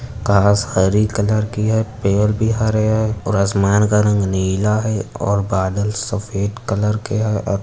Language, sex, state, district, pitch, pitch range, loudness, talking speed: Hindi, male, Uttar Pradesh, Etah, 105 Hz, 100-110 Hz, -18 LUFS, 180 wpm